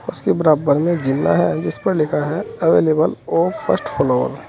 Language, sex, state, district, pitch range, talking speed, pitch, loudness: Hindi, male, Uttar Pradesh, Saharanpur, 135-165 Hz, 185 wpm, 155 Hz, -18 LUFS